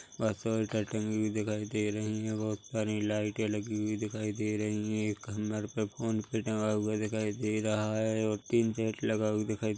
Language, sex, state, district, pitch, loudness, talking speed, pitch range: Hindi, male, Chhattisgarh, Korba, 110 Hz, -33 LUFS, 190 wpm, 105-110 Hz